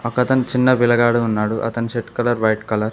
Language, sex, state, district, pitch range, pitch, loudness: Telugu, male, Telangana, Mahabubabad, 110-120 Hz, 120 Hz, -18 LUFS